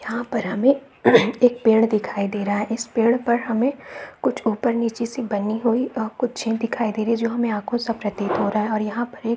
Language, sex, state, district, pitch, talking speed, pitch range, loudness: Hindi, male, Chhattisgarh, Balrampur, 230 Hz, 235 wpm, 215-240 Hz, -21 LUFS